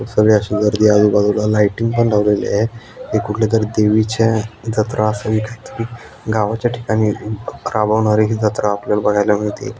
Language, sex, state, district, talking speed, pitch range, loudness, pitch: Marathi, male, Maharashtra, Aurangabad, 155 wpm, 105-110 Hz, -16 LUFS, 110 Hz